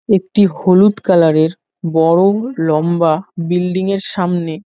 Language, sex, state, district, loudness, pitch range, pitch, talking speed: Bengali, male, West Bengal, North 24 Parganas, -14 LUFS, 165-195 Hz, 180 Hz, 115 wpm